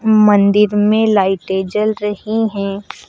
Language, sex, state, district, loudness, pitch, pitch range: Hindi, female, Uttar Pradesh, Lucknow, -14 LUFS, 210 Hz, 200-215 Hz